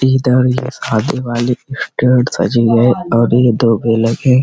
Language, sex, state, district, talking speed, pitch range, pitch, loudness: Hindi, male, Uttar Pradesh, Budaun, 120 wpm, 115-130 Hz, 125 Hz, -13 LUFS